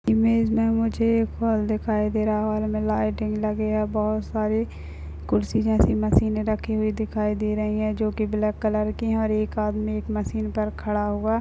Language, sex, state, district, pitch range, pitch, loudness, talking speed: Hindi, female, Uttar Pradesh, Etah, 210-220 Hz, 215 Hz, -24 LUFS, 200 wpm